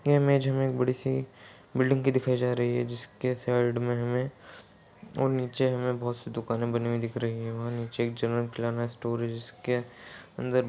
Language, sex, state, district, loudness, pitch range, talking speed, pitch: Hindi, male, Uttar Pradesh, Etah, -29 LUFS, 120-130 Hz, 210 wpm, 120 Hz